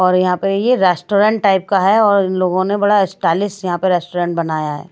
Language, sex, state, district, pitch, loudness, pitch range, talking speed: Hindi, female, Maharashtra, Washim, 190 Hz, -15 LUFS, 180-200 Hz, 230 wpm